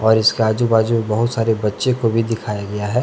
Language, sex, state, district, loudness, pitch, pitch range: Hindi, male, Jharkhand, Deoghar, -18 LUFS, 115 Hz, 110-115 Hz